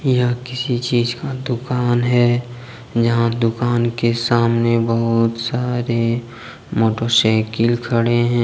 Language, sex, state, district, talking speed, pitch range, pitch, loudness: Hindi, male, Jharkhand, Deoghar, 105 wpm, 115-120 Hz, 120 Hz, -18 LUFS